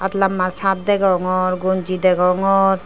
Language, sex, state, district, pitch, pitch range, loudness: Chakma, female, Tripura, Dhalai, 185 Hz, 185-195 Hz, -17 LUFS